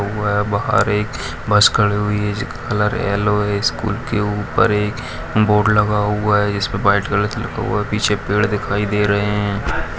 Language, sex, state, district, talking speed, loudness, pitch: Hindi, male, Bihar, Araria, 205 wpm, -18 LUFS, 105 Hz